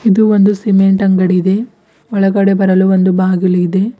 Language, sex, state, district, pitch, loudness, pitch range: Kannada, female, Karnataka, Bidar, 195 Hz, -12 LUFS, 185-205 Hz